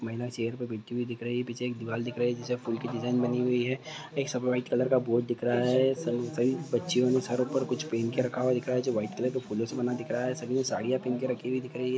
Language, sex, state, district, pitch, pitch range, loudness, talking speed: Hindi, male, Bihar, Jahanabad, 125 Hz, 120-125 Hz, -30 LUFS, 320 wpm